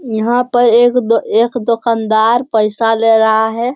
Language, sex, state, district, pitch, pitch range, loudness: Hindi, male, Bihar, Jamui, 230 Hz, 220-245 Hz, -12 LUFS